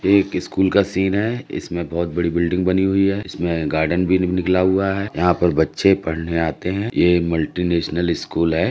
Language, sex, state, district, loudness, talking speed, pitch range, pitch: Hindi, male, Uttar Pradesh, Jalaun, -19 LUFS, 200 wpm, 85-95 Hz, 90 Hz